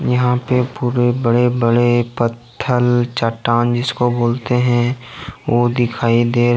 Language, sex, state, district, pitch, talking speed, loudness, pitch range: Hindi, male, Jharkhand, Ranchi, 120 Hz, 120 wpm, -16 LUFS, 120-125 Hz